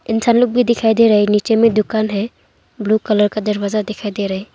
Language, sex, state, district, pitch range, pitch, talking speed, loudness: Hindi, female, Arunachal Pradesh, Longding, 210-225 Hz, 215 Hz, 235 wpm, -15 LUFS